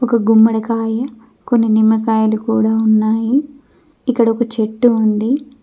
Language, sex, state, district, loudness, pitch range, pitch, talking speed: Telugu, female, Telangana, Mahabubabad, -15 LUFS, 220-240 Hz, 225 Hz, 105 wpm